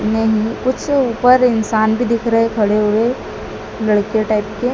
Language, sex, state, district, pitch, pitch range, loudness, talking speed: Hindi, male, Madhya Pradesh, Dhar, 225 Hz, 215-245 Hz, -16 LUFS, 150 wpm